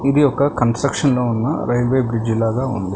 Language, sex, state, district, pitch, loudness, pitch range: Telugu, male, Telangana, Hyderabad, 125 Hz, -18 LUFS, 115-140 Hz